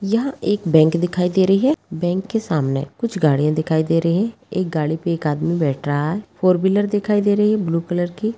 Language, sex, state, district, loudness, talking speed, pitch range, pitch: Hindi, female, Bihar, Begusarai, -19 LUFS, 205 wpm, 160-205 Hz, 180 Hz